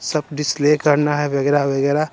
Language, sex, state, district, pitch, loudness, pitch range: Hindi, male, Bihar, Patna, 145 Hz, -18 LUFS, 145-150 Hz